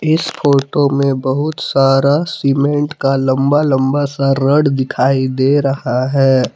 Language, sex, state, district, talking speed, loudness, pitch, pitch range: Hindi, male, Jharkhand, Palamu, 135 wpm, -14 LUFS, 135 Hz, 135-145 Hz